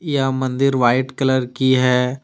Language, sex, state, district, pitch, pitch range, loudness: Hindi, male, Jharkhand, Deoghar, 130 Hz, 125-135 Hz, -18 LUFS